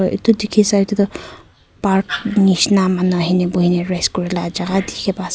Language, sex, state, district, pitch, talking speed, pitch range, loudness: Nagamese, female, Nagaland, Kohima, 190 Hz, 180 wpm, 180-200 Hz, -16 LUFS